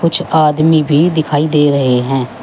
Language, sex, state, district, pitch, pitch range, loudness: Hindi, female, Uttar Pradesh, Shamli, 150 Hz, 140-160 Hz, -12 LUFS